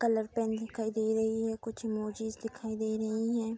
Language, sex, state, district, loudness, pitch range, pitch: Hindi, female, Uttar Pradesh, Budaun, -33 LUFS, 220-225 Hz, 220 Hz